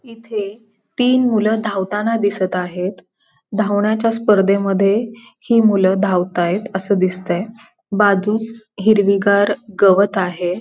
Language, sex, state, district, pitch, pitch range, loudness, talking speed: Marathi, female, Maharashtra, Pune, 205 Hz, 195-220 Hz, -17 LUFS, 95 wpm